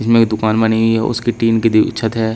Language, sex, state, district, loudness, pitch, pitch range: Hindi, male, Uttar Pradesh, Shamli, -15 LUFS, 115 Hz, 110-115 Hz